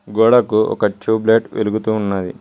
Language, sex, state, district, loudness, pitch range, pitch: Telugu, male, Telangana, Mahabubabad, -16 LUFS, 105-110 Hz, 110 Hz